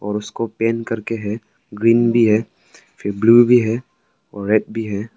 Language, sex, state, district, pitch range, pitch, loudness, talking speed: Hindi, male, Arunachal Pradesh, Papum Pare, 105-115 Hz, 115 Hz, -17 LUFS, 160 wpm